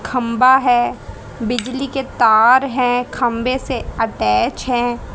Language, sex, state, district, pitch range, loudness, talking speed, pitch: Hindi, female, Haryana, Charkhi Dadri, 225-255 Hz, -16 LUFS, 115 wpm, 245 Hz